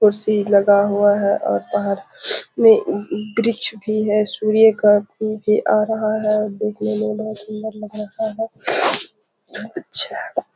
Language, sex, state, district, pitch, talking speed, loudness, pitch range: Hindi, female, Bihar, Kishanganj, 215 Hz, 145 wpm, -18 LUFS, 205-215 Hz